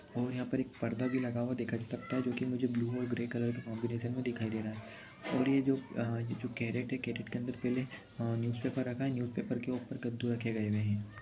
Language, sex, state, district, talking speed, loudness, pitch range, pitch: Hindi, male, Chhattisgarh, Sarguja, 265 wpm, -36 LUFS, 115-125 Hz, 120 Hz